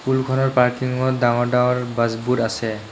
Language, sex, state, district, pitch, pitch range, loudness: Assamese, male, Assam, Kamrup Metropolitan, 125 Hz, 115-130 Hz, -20 LUFS